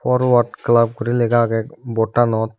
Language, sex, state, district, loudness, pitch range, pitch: Chakma, male, Tripura, Unakoti, -17 LUFS, 115-120 Hz, 120 Hz